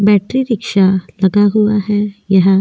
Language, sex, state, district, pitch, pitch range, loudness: Hindi, female, Goa, North and South Goa, 205 Hz, 190-210 Hz, -14 LUFS